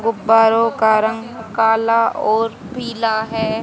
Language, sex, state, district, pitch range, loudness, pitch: Hindi, female, Haryana, Jhajjar, 220-230 Hz, -16 LUFS, 225 Hz